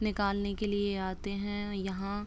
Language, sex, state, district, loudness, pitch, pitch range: Hindi, male, Bihar, Purnia, -34 LUFS, 200 Hz, 200-205 Hz